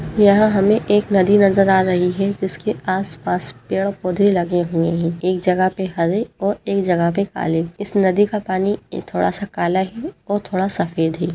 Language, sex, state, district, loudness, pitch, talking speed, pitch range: Hindi, female, Uttar Pradesh, Etah, -18 LUFS, 190 Hz, 190 wpm, 175-200 Hz